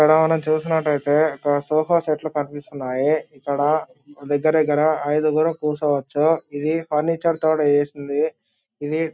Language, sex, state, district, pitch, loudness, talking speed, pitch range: Telugu, male, Andhra Pradesh, Anantapur, 150 Hz, -21 LUFS, 120 wpm, 145-155 Hz